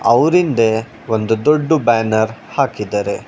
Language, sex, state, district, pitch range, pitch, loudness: Kannada, male, Karnataka, Bangalore, 110-140 Hz, 115 Hz, -16 LUFS